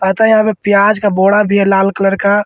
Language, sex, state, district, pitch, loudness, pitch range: Hindi, male, Jharkhand, Ranchi, 200 Hz, -11 LUFS, 195-210 Hz